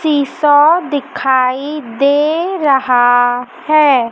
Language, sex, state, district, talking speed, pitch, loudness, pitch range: Hindi, male, Madhya Pradesh, Dhar, 75 wpm, 285 Hz, -13 LUFS, 255-305 Hz